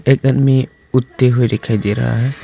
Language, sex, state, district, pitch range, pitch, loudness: Hindi, male, Arunachal Pradesh, Longding, 115-135 Hz, 130 Hz, -15 LUFS